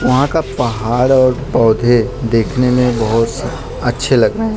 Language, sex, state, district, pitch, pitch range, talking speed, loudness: Hindi, male, Maharashtra, Mumbai Suburban, 125 Hz, 115-130 Hz, 155 wpm, -14 LUFS